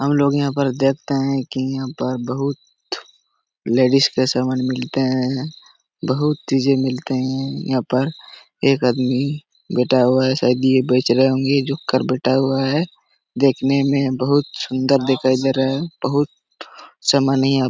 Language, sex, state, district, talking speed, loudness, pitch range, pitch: Hindi, male, Jharkhand, Sahebganj, 150 wpm, -19 LUFS, 130-140 Hz, 135 Hz